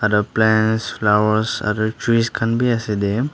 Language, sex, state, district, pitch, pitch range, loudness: Nagamese, male, Nagaland, Dimapur, 110 Hz, 105-115 Hz, -18 LUFS